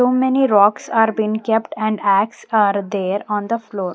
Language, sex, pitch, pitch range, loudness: English, female, 215 Hz, 200-225 Hz, -17 LUFS